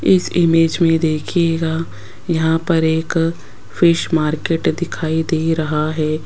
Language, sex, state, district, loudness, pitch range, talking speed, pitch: Hindi, female, Rajasthan, Jaipur, -17 LUFS, 160-165 Hz, 125 wpm, 160 Hz